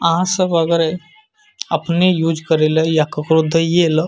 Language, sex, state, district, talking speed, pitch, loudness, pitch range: Maithili, male, Bihar, Madhepura, 130 wpm, 165 Hz, -16 LUFS, 160-180 Hz